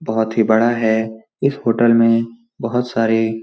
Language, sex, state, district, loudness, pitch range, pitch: Hindi, male, Bihar, Supaul, -17 LUFS, 110-120 Hz, 115 Hz